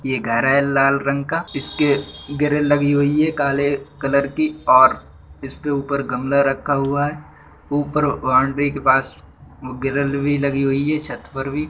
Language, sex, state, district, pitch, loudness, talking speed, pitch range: Bundeli, male, Uttar Pradesh, Budaun, 140 Hz, -19 LUFS, 185 wpm, 135-145 Hz